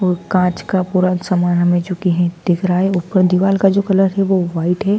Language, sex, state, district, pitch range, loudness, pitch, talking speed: Hindi, female, Madhya Pradesh, Dhar, 175-190 Hz, -16 LUFS, 185 Hz, 230 wpm